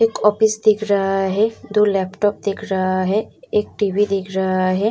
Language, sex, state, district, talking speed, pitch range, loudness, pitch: Hindi, female, Uttar Pradesh, Muzaffarnagar, 185 wpm, 190-210 Hz, -19 LUFS, 205 Hz